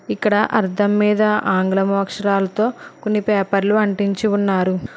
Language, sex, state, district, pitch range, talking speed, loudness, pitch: Telugu, female, Telangana, Hyderabad, 195-215 Hz, 110 wpm, -18 LUFS, 205 Hz